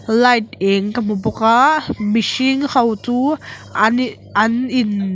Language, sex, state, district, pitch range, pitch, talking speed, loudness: Mizo, female, Mizoram, Aizawl, 215-250 Hz, 230 Hz, 150 wpm, -16 LUFS